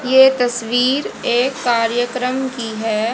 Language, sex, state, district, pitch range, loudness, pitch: Hindi, female, Haryana, Jhajjar, 230-260 Hz, -17 LUFS, 245 Hz